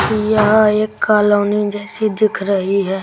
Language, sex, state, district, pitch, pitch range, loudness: Hindi, female, Delhi, New Delhi, 210 Hz, 200-215 Hz, -15 LUFS